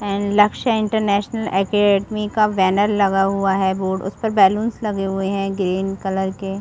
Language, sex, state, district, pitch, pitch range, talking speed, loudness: Hindi, female, Chhattisgarh, Bastar, 200 Hz, 195-210 Hz, 180 wpm, -19 LUFS